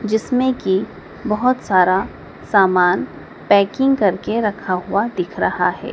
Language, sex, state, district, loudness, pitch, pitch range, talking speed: Hindi, female, Madhya Pradesh, Dhar, -17 LUFS, 200 Hz, 190-230 Hz, 120 wpm